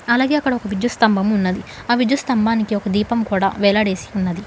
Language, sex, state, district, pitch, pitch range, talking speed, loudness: Telugu, female, Telangana, Hyderabad, 215 Hz, 200-240 Hz, 190 wpm, -18 LUFS